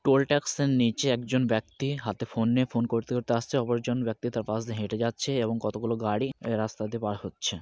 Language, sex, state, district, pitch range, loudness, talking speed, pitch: Bengali, male, West Bengal, Kolkata, 110-130 Hz, -28 LUFS, 195 wpm, 115 Hz